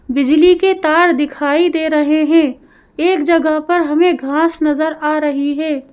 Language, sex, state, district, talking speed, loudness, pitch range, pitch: Hindi, female, Madhya Pradesh, Bhopal, 160 wpm, -14 LUFS, 295-335 Hz, 310 Hz